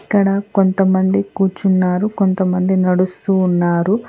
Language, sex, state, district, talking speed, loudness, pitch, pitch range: Telugu, female, Telangana, Hyderabad, 90 wpm, -16 LUFS, 190 Hz, 185-200 Hz